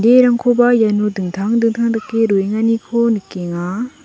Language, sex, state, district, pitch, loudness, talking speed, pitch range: Garo, female, Meghalaya, West Garo Hills, 225 Hz, -16 LUFS, 90 wpm, 205-235 Hz